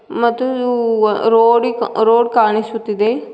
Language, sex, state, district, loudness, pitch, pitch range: Kannada, female, Karnataka, Koppal, -15 LUFS, 230 Hz, 220-235 Hz